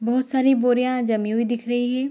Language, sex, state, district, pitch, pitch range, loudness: Hindi, female, Bihar, Saharsa, 245 Hz, 235-255 Hz, -21 LUFS